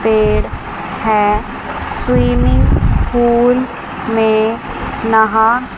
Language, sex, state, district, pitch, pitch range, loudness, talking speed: Hindi, male, Chandigarh, Chandigarh, 225 Hz, 220-240 Hz, -14 LUFS, 60 wpm